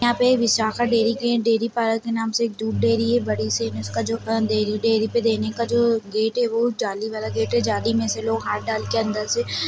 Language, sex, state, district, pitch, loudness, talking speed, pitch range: Hindi, female, Chhattisgarh, Balrampur, 225 Hz, -22 LUFS, 250 wpm, 215-235 Hz